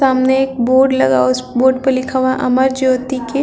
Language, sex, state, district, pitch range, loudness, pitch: Hindi, female, Bihar, Vaishali, 255-265 Hz, -14 LUFS, 260 Hz